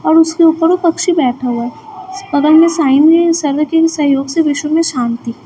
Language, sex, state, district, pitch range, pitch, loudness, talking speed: Hindi, female, Chhattisgarh, Raipur, 280-330 Hz, 315 Hz, -12 LUFS, 195 wpm